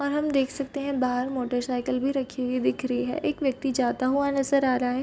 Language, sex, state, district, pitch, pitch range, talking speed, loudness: Hindi, female, Bihar, Purnia, 260 Hz, 250-275 Hz, 260 wpm, -26 LUFS